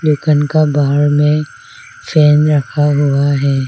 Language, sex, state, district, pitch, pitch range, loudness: Hindi, female, Arunachal Pradesh, Lower Dibang Valley, 150 Hz, 145-155 Hz, -12 LUFS